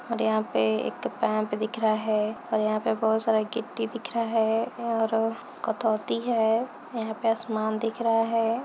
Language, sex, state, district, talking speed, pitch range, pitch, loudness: Hindi, female, Bihar, Jahanabad, 180 wpm, 215-230 Hz, 225 Hz, -27 LUFS